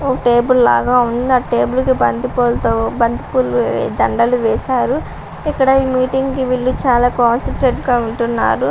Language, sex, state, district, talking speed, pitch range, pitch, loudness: Telugu, female, Andhra Pradesh, Visakhapatnam, 135 wpm, 235-260 Hz, 250 Hz, -15 LUFS